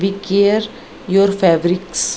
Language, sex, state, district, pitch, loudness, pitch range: Hindi, female, Bihar, Gaya, 195 Hz, -15 LUFS, 185-200 Hz